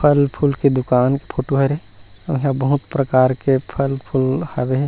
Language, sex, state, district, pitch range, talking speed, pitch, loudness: Chhattisgarhi, male, Chhattisgarh, Rajnandgaon, 130-140 Hz, 135 wpm, 135 Hz, -18 LUFS